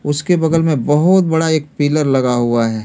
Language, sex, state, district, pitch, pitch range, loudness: Hindi, male, Delhi, New Delhi, 150 Hz, 130-160 Hz, -14 LUFS